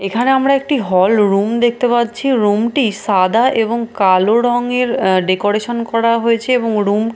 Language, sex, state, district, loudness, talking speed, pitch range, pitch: Bengali, female, Bihar, Katihar, -14 LUFS, 150 wpm, 205-245 Hz, 230 Hz